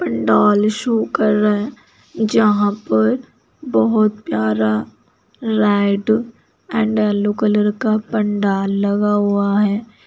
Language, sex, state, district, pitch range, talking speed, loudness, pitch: Hindi, female, Bihar, Saharsa, 200-215 Hz, 105 wpm, -17 LUFS, 210 Hz